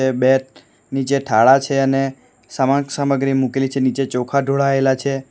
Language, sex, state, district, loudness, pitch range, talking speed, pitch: Gujarati, male, Gujarat, Valsad, -17 LUFS, 130-135 Hz, 145 wpm, 135 Hz